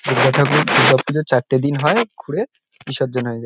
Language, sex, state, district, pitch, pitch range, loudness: Bengali, male, West Bengal, North 24 Parganas, 135 Hz, 130-145 Hz, -17 LUFS